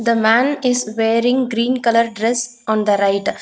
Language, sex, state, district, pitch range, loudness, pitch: English, female, Telangana, Hyderabad, 220-245 Hz, -17 LUFS, 230 Hz